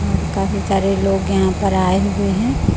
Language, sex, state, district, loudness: Hindi, female, Chhattisgarh, Raipur, -17 LUFS